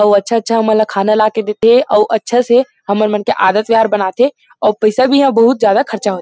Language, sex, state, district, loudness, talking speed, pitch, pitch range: Chhattisgarhi, male, Chhattisgarh, Rajnandgaon, -12 LUFS, 240 wpm, 220 Hz, 210-235 Hz